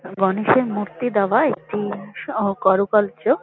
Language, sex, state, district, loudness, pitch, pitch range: Bengali, female, West Bengal, North 24 Parganas, -20 LUFS, 205 Hz, 195-215 Hz